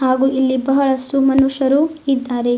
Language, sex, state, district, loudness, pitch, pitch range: Kannada, female, Karnataka, Bidar, -16 LUFS, 270 Hz, 260-275 Hz